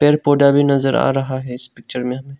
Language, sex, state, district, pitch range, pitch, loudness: Hindi, male, Arunachal Pradesh, Longding, 130-140 Hz, 135 Hz, -17 LUFS